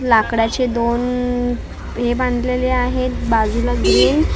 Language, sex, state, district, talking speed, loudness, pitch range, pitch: Marathi, female, Maharashtra, Mumbai Suburban, 125 wpm, -18 LUFS, 230-250 Hz, 245 Hz